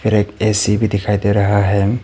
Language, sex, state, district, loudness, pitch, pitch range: Hindi, male, Arunachal Pradesh, Papum Pare, -16 LUFS, 105 Hz, 100-105 Hz